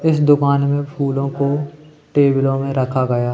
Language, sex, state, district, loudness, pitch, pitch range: Hindi, male, Madhya Pradesh, Katni, -17 LUFS, 140 Hz, 135-145 Hz